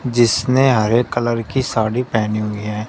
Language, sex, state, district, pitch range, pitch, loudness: Hindi, male, Uttar Pradesh, Shamli, 110-125 Hz, 115 Hz, -17 LUFS